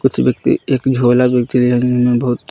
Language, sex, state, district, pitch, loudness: Hindi, male, Jharkhand, Palamu, 125 Hz, -14 LUFS